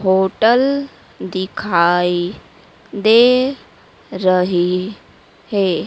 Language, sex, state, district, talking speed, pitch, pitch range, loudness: Hindi, female, Madhya Pradesh, Dhar, 50 wpm, 190 Hz, 180-225 Hz, -16 LUFS